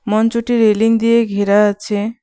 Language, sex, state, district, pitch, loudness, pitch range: Bengali, female, West Bengal, Cooch Behar, 220 Hz, -14 LUFS, 210-230 Hz